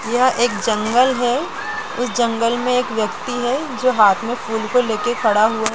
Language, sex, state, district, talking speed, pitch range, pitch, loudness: Hindi, female, Jharkhand, Jamtara, 185 wpm, 220-250 Hz, 240 Hz, -18 LUFS